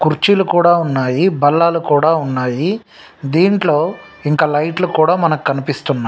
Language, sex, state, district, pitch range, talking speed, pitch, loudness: Telugu, male, Telangana, Nalgonda, 145-175 Hz, 110 wpm, 155 Hz, -15 LUFS